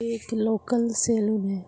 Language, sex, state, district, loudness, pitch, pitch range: Hindi, female, West Bengal, Purulia, -25 LUFS, 220 Hz, 210-230 Hz